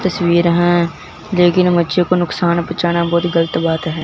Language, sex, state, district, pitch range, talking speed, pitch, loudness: Hindi, male, Punjab, Fazilka, 170-175 Hz, 165 wpm, 170 Hz, -15 LUFS